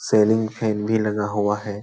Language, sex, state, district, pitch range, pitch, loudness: Hindi, male, Bihar, Jahanabad, 105-110 Hz, 105 Hz, -21 LUFS